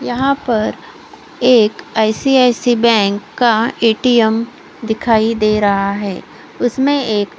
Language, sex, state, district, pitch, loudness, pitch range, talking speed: Hindi, female, Odisha, Khordha, 230 Hz, -14 LUFS, 215-250 Hz, 105 wpm